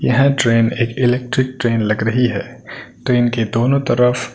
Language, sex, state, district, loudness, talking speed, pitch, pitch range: Hindi, male, Delhi, New Delhi, -16 LUFS, 165 wpm, 120 Hz, 115-125 Hz